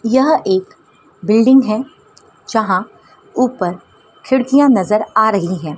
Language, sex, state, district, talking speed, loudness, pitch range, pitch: Hindi, female, Madhya Pradesh, Dhar, 115 wpm, -14 LUFS, 195-265 Hz, 225 Hz